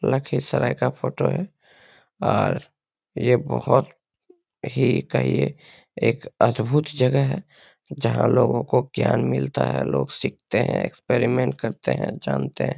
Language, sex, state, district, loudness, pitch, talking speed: Hindi, male, Bihar, Lakhisarai, -22 LUFS, 125 Hz, 125 wpm